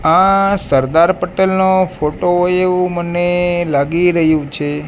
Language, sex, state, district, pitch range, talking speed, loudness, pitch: Gujarati, male, Gujarat, Gandhinagar, 155-185 Hz, 125 wpm, -14 LUFS, 175 Hz